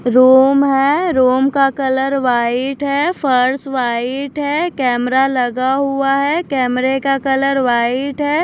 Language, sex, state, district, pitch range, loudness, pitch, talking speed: Hindi, female, Maharashtra, Washim, 255-280 Hz, -15 LUFS, 270 Hz, 135 wpm